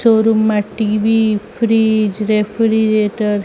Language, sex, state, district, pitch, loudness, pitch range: Gujarati, female, Gujarat, Gandhinagar, 215 Hz, -15 LUFS, 210-220 Hz